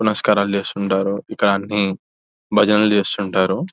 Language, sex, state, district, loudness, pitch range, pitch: Telugu, male, Telangana, Nalgonda, -18 LUFS, 95-105 Hz, 100 Hz